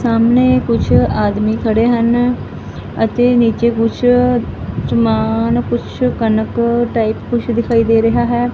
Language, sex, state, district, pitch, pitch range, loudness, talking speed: Punjabi, female, Punjab, Fazilka, 230 Hz, 210-240 Hz, -14 LUFS, 120 wpm